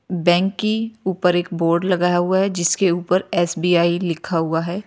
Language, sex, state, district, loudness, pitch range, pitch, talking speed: Hindi, female, Uttar Pradesh, Lalitpur, -19 LUFS, 170-190 Hz, 175 Hz, 170 wpm